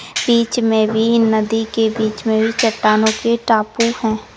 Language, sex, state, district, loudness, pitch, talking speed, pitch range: Hindi, female, Maharashtra, Pune, -16 LUFS, 225 Hz, 165 wpm, 220-230 Hz